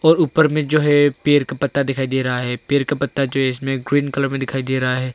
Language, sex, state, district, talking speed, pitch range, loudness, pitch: Hindi, male, Arunachal Pradesh, Longding, 290 wpm, 130-145 Hz, -18 LUFS, 135 Hz